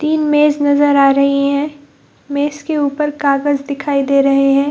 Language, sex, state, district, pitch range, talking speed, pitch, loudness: Hindi, female, Bihar, Jahanabad, 275-295 Hz, 190 wpm, 285 Hz, -14 LUFS